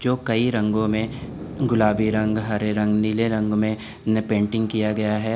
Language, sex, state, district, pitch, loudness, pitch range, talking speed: Hindi, male, Uttar Pradesh, Budaun, 110 Hz, -22 LUFS, 105-110 Hz, 180 wpm